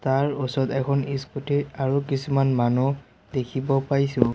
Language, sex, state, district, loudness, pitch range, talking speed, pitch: Assamese, male, Assam, Sonitpur, -24 LUFS, 130-140 Hz, 110 wpm, 135 Hz